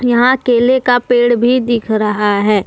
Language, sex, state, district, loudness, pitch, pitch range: Hindi, female, Jharkhand, Deoghar, -12 LUFS, 240 Hz, 215-245 Hz